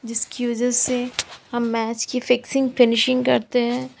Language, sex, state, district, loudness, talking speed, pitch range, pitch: Hindi, female, Uttar Pradesh, Lalitpur, -21 LUFS, 150 wpm, 235-250 Hz, 245 Hz